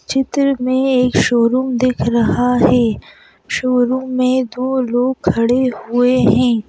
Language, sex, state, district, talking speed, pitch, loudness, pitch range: Hindi, female, Madhya Pradesh, Bhopal, 125 wpm, 255 Hz, -15 LUFS, 245-260 Hz